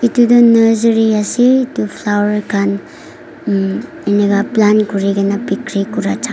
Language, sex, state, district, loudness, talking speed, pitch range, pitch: Nagamese, female, Nagaland, Kohima, -13 LUFS, 105 wpm, 200-240 Hz, 210 Hz